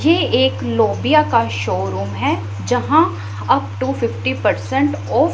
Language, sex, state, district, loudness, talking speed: Hindi, female, Punjab, Pathankot, -17 LUFS, 145 wpm